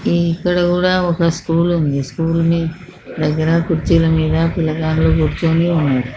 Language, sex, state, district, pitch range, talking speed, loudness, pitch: Telugu, male, Andhra Pradesh, Krishna, 160-170 Hz, 135 wpm, -16 LUFS, 165 Hz